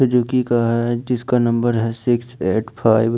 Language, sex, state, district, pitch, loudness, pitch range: Hindi, male, Chandigarh, Chandigarh, 120 Hz, -19 LUFS, 115-125 Hz